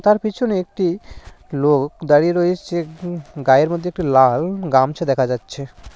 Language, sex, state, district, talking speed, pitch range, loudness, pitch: Bengali, male, West Bengal, Cooch Behar, 130 wpm, 135-180 Hz, -18 LUFS, 160 Hz